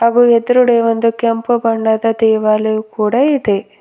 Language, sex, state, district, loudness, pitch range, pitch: Kannada, female, Karnataka, Bidar, -13 LUFS, 220-240 Hz, 230 Hz